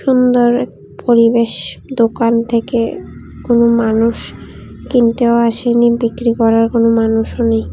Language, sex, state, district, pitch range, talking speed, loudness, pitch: Bengali, female, Tripura, West Tripura, 230-240 Hz, 110 wpm, -13 LUFS, 235 Hz